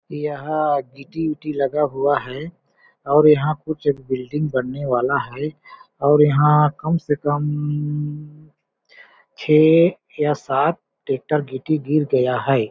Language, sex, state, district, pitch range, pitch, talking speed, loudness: Hindi, male, Chhattisgarh, Balrampur, 140-150 Hz, 150 Hz, 120 wpm, -19 LUFS